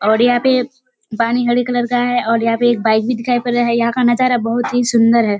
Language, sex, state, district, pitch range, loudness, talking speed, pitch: Hindi, female, Bihar, Kishanganj, 230-245 Hz, -15 LUFS, 275 wpm, 240 Hz